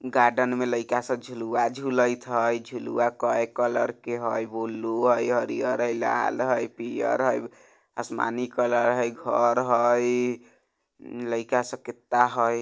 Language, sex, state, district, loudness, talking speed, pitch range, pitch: Bajjika, male, Bihar, Vaishali, -25 LUFS, 140 wpm, 115-125 Hz, 120 Hz